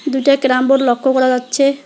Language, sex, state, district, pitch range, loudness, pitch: Bengali, female, West Bengal, Alipurduar, 255-275 Hz, -14 LUFS, 265 Hz